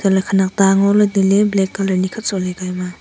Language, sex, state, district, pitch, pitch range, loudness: Wancho, female, Arunachal Pradesh, Longding, 195 Hz, 185-200 Hz, -16 LUFS